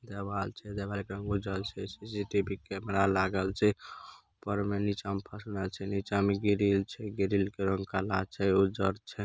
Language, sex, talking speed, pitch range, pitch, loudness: Angika, male, 190 wpm, 95-100 Hz, 100 Hz, -32 LUFS